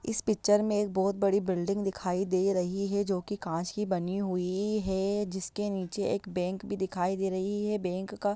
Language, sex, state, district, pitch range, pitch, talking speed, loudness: Hindi, female, Bihar, Sitamarhi, 185-205 Hz, 195 Hz, 200 wpm, -30 LUFS